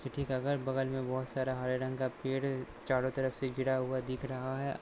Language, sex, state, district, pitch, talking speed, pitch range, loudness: Hindi, male, Jharkhand, Sahebganj, 130 Hz, 225 wpm, 130-135 Hz, -35 LUFS